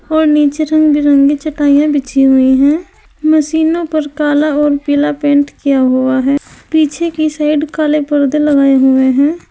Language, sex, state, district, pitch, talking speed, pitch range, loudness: Hindi, female, Uttar Pradesh, Saharanpur, 295 Hz, 160 wpm, 280-310 Hz, -12 LUFS